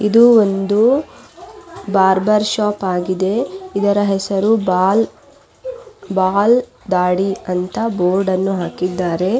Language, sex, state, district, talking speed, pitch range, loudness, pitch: Kannada, female, Karnataka, Raichur, 90 wpm, 185-230 Hz, -16 LUFS, 200 Hz